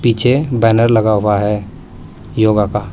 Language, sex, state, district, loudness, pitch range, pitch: Hindi, male, Uttar Pradesh, Saharanpur, -14 LUFS, 105-115 Hz, 110 Hz